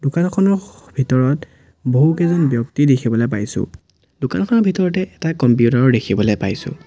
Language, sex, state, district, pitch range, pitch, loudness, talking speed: Assamese, male, Assam, Sonitpur, 115-170 Hz, 135 Hz, -17 LUFS, 120 wpm